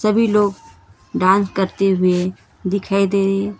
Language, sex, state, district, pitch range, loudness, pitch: Hindi, female, Karnataka, Bangalore, 185-200 Hz, -18 LUFS, 195 Hz